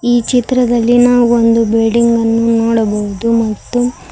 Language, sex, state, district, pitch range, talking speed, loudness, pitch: Kannada, female, Karnataka, Koppal, 225-245 Hz, 130 wpm, -12 LUFS, 230 Hz